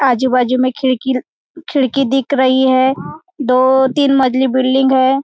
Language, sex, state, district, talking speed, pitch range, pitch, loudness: Hindi, male, Maharashtra, Chandrapur, 150 wpm, 255-270 Hz, 260 Hz, -14 LUFS